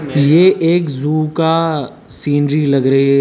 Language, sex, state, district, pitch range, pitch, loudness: Hindi, male, Uttar Pradesh, Lucknow, 140-160 Hz, 150 Hz, -14 LUFS